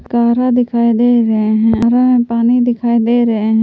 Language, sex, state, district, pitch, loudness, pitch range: Hindi, female, Jharkhand, Palamu, 235 Hz, -12 LUFS, 230-240 Hz